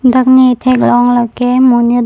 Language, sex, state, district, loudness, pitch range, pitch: Karbi, female, Assam, Karbi Anglong, -9 LUFS, 245-255 Hz, 250 Hz